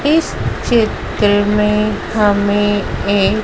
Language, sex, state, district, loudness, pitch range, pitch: Hindi, female, Madhya Pradesh, Dhar, -15 LUFS, 205-215 Hz, 210 Hz